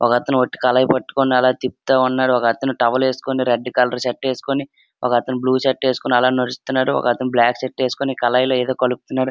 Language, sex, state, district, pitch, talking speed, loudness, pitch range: Telugu, male, Andhra Pradesh, Srikakulam, 130 Hz, 175 wpm, -18 LUFS, 125-130 Hz